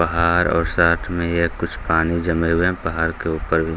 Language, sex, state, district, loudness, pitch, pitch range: Hindi, male, Bihar, Gaya, -19 LUFS, 85 Hz, 80-85 Hz